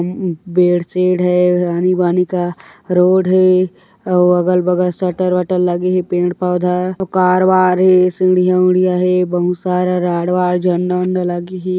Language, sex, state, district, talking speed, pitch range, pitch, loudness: Chhattisgarhi, male, Chhattisgarh, Korba, 130 wpm, 180-185 Hz, 180 Hz, -14 LUFS